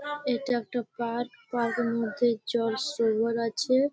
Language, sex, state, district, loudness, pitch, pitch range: Bengali, female, West Bengal, Malda, -28 LUFS, 235 Hz, 230-255 Hz